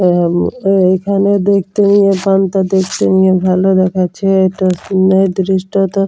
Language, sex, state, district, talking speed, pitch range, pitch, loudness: Bengali, female, West Bengal, Jalpaiguri, 130 wpm, 185-195 Hz, 190 Hz, -12 LUFS